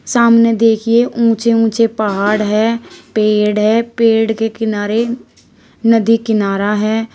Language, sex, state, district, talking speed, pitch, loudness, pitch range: Hindi, female, Uttar Pradesh, Shamli, 115 wpm, 225 Hz, -14 LUFS, 215-230 Hz